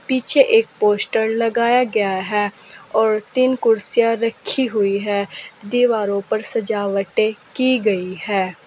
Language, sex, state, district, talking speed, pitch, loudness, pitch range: Hindi, female, Uttar Pradesh, Saharanpur, 125 wpm, 220 Hz, -18 LUFS, 205-235 Hz